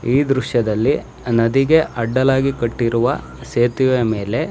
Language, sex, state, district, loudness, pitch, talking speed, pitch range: Kannada, male, Karnataka, Shimoga, -18 LUFS, 125 Hz, 105 wpm, 115-135 Hz